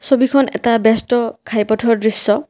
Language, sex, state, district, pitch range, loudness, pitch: Assamese, female, Assam, Kamrup Metropolitan, 220-260 Hz, -15 LUFS, 230 Hz